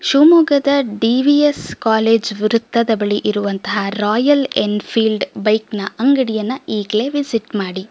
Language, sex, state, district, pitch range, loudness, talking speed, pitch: Kannada, female, Karnataka, Shimoga, 210-270 Hz, -16 LUFS, 105 wpm, 225 Hz